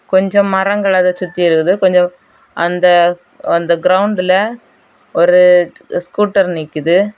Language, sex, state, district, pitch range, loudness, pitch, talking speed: Tamil, female, Tamil Nadu, Kanyakumari, 175-190 Hz, -13 LUFS, 180 Hz, 100 wpm